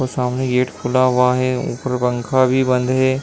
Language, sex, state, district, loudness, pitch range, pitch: Hindi, male, Uttar Pradesh, Hamirpur, -17 LUFS, 125-130 Hz, 125 Hz